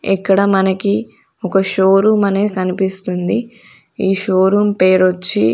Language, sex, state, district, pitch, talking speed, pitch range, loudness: Telugu, female, Andhra Pradesh, Sri Satya Sai, 195 Hz, 120 wpm, 185-205 Hz, -15 LUFS